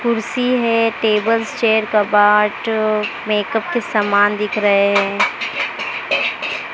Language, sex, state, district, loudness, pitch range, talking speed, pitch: Hindi, male, Maharashtra, Mumbai Suburban, -16 LUFS, 210-230 Hz, 100 wpm, 215 Hz